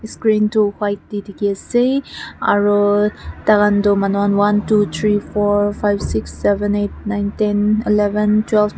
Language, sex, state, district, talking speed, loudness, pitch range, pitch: Nagamese, female, Nagaland, Kohima, 170 wpm, -17 LUFS, 205-210 Hz, 205 Hz